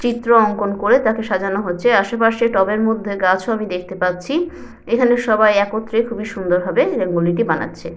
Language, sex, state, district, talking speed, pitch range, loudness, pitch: Bengali, female, West Bengal, Jhargram, 180 wpm, 185-230 Hz, -17 LUFS, 210 Hz